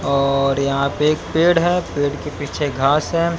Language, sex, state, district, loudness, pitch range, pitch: Hindi, male, Haryana, Jhajjar, -18 LUFS, 140-165 Hz, 145 Hz